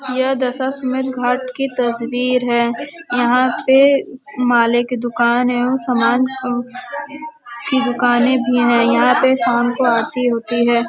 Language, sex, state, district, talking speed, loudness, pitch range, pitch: Hindi, female, Uttar Pradesh, Varanasi, 145 wpm, -16 LUFS, 240-260 Hz, 250 Hz